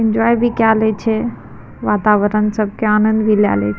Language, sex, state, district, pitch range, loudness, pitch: Maithili, female, Bihar, Madhepura, 210-225 Hz, -15 LUFS, 215 Hz